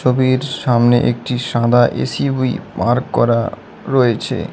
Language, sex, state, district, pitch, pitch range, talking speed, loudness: Bengali, male, West Bengal, Cooch Behar, 125 Hz, 120-130 Hz, 105 wpm, -16 LUFS